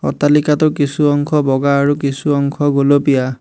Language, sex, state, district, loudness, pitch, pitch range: Assamese, male, Assam, Hailakandi, -14 LUFS, 145 Hz, 140-145 Hz